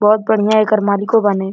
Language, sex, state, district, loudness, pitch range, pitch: Bhojpuri, male, Uttar Pradesh, Deoria, -14 LUFS, 200-215 Hz, 210 Hz